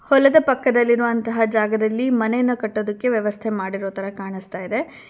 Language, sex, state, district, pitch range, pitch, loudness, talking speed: Kannada, female, Karnataka, Bangalore, 210-245 Hz, 225 Hz, -20 LUFS, 105 wpm